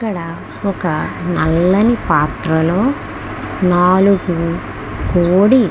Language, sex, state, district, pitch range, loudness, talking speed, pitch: Telugu, female, Andhra Pradesh, Krishna, 150-190 Hz, -15 LUFS, 75 wpm, 175 Hz